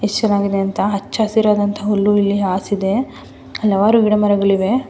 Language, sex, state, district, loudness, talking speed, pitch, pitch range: Kannada, female, Karnataka, Mysore, -16 LUFS, 135 wpm, 205 Hz, 200-210 Hz